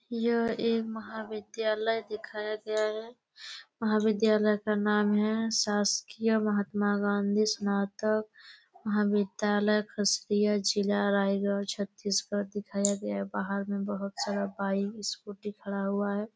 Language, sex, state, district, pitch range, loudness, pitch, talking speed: Hindi, female, Chhattisgarh, Raigarh, 200-215 Hz, -29 LUFS, 210 Hz, 115 wpm